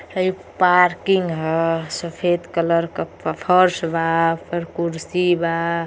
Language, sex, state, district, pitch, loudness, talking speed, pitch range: Bhojpuri, female, Uttar Pradesh, Gorakhpur, 170 Hz, -20 LUFS, 110 wpm, 165-180 Hz